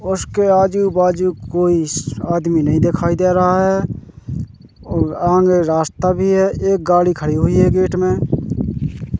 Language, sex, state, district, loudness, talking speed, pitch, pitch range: Hindi, male, Madhya Pradesh, Katni, -16 LUFS, 145 wpm, 180 Hz, 170-185 Hz